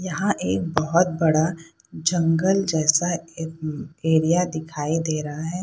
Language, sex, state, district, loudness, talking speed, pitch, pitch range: Hindi, female, Bihar, Purnia, -22 LUFS, 130 wpm, 165 Hz, 155-175 Hz